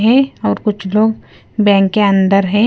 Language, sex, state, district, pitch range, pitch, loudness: Hindi, female, Punjab, Kapurthala, 195-215 Hz, 205 Hz, -13 LUFS